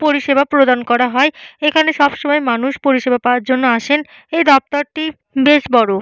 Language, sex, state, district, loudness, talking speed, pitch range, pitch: Bengali, female, West Bengal, Purulia, -14 LUFS, 160 wpm, 250-295 Hz, 275 Hz